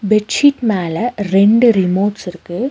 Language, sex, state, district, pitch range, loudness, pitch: Tamil, female, Tamil Nadu, Nilgiris, 190-230 Hz, -14 LUFS, 205 Hz